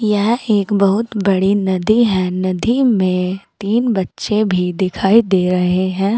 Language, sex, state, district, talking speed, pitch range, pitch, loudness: Hindi, female, Uttar Pradesh, Saharanpur, 145 wpm, 185-215 Hz, 195 Hz, -16 LUFS